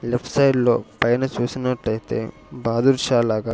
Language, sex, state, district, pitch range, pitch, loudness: Telugu, male, Andhra Pradesh, Sri Satya Sai, 115-125 Hz, 120 Hz, -21 LUFS